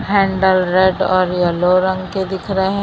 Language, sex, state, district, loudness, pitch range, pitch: Hindi, female, Maharashtra, Mumbai Suburban, -16 LUFS, 185-190 Hz, 190 Hz